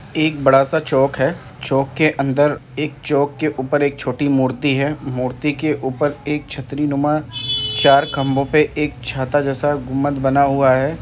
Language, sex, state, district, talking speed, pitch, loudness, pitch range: Hindi, male, Uttar Pradesh, Gorakhpur, 165 wpm, 140 Hz, -18 LUFS, 135-145 Hz